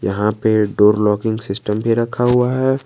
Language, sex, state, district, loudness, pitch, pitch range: Hindi, male, Jharkhand, Garhwa, -16 LUFS, 110 Hz, 105-120 Hz